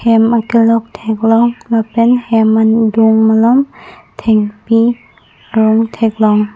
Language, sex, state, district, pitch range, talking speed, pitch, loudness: Karbi, female, Assam, Karbi Anglong, 220-230 Hz, 80 wpm, 225 Hz, -12 LUFS